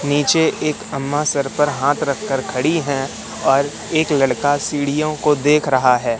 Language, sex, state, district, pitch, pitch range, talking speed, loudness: Hindi, male, Madhya Pradesh, Katni, 145 Hz, 135-150 Hz, 175 wpm, -18 LUFS